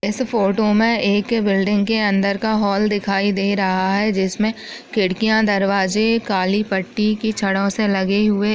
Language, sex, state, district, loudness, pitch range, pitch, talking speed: Hindi, female, Chhattisgarh, Raigarh, -18 LUFS, 195-215 Hz, 205 Hz, 160 wpm